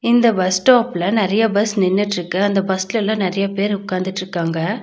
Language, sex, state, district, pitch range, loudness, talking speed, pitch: Tamil, female, Tamil Nadu, Nilgiris, 185-215 Hz, -18 LUFS, 135 wpm, 195 Hz